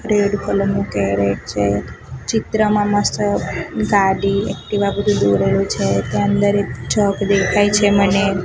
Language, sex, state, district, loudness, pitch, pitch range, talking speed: Gujarati, female, Gujarat, Gandhinagar, -17 LUFS, 200 Hz, 125-205 Hz, 135 wpm